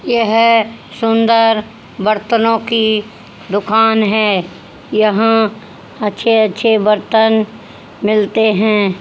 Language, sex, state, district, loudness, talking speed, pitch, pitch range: Hindi, female, Haryana, Rohtak, -13 LUFS, 80 wpm, 220 Hz, 210-225 Hz